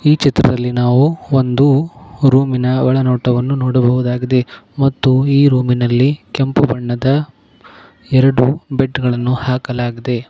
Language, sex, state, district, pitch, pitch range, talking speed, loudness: Kannada, male, Karnataka, Koppal, 130 Hz, 125-135 Hz, 100 wpm, -14 LUFS